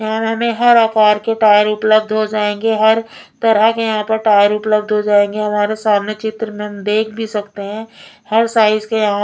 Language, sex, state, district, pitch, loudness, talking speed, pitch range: Hindi, female, Punjab, Fazilka, 215 Hz, -14 LUFS, 210 wpm, 210-220 Hz